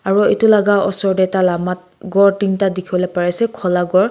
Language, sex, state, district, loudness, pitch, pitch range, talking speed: Nagamese, female, Nagaland, Kohima, -15 LUFS, 190 Hz, 180-200 Hz, 220 wpm